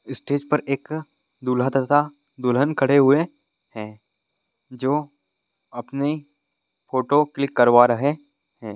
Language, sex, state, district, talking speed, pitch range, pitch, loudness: Hindi, male, Bihar, East Champaran, 110 wpm, 125-145 Hz, 135 Hz, -21 LUFS